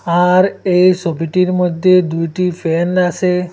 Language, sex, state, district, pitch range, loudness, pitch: Bengali, male, Assam, Hailakandi, 170-185 Hz, -14 LUFS, 180 Hz